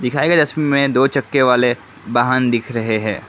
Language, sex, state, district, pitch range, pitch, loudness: Hindi, male, Assam, Kamrup Metropolitan, 120-140 Hz, 130 Hz, -16 LUFS